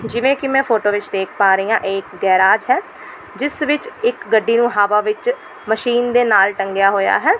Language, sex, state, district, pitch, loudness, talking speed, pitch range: Punjabi, female, Delhi, New Delhi, 225 Hz, -16 LUFS, 205 wpm, 200-270 Hz